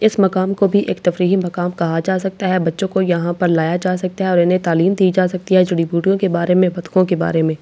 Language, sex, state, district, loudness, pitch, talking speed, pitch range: Hindi, female, Delhi, New Delhi, -16 LUFS, 180 Hz, 285 wpm, 175-190 Hz